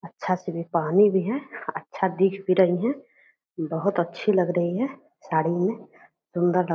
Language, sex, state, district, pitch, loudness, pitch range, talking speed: Angika, female, Bihar, Purnia, 185 Hz, -24 LUFS, 175-210 Hz, 175 wpm